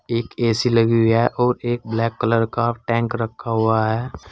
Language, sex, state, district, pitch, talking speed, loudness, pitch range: Hindi, male, Uttar Pradesh, Saharanpur, 115 Hz, 180 wpm, -20 LUFS, 115-120 Hz